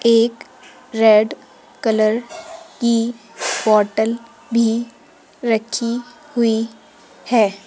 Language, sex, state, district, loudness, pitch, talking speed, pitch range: Hindi, female, Madhya Pradesh, Umaria, -18 LUFS, 230 Hz, 70 wpm, 220-240 Hz